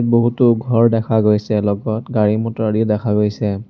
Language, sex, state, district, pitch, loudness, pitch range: Assamese, male, Assam, Sonitpur, 110 Hz, -16 LUFS, 105-115 Hz